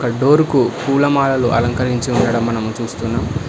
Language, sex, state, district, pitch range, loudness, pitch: Telugu, male, Telangana, Hyderabad, 115-135 Hz, -16 LUFS, 120 Hz